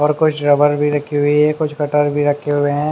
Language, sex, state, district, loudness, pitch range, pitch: Hindi, male, Haryana, Charkhi Dadri, -16 LUFS, 145-150 Hz, 145 Hz